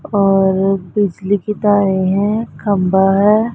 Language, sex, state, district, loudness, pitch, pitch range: Hindi, male, Punjab, Pathankot, -15 LUFS, 200 Hz, 190-210 Hz